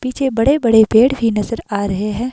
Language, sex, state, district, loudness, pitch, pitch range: Hindi, female, Himachal Pradesh, Shimla, -15 LUFS, 230 Hz, 210-255 Hz